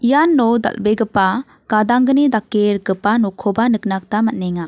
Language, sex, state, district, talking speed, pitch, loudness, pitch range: Garo, female, Meghalaya, West Garo Hills, 115 wpm, 215 Hz, -16 LUFS, 200-240 Hz